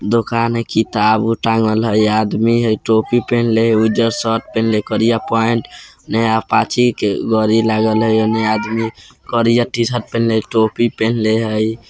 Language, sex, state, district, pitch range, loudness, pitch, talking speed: Bajjika, male, Bihar, Vaishali, 110-115 Hz, -15 LUFS, 115 Hz, 160 wpm